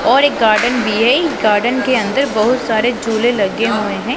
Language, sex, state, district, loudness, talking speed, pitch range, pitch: Hindi, female, Punjab, Pathankot, -14 LUFS, 185 wpm, 220-265 Hz, 240 Hz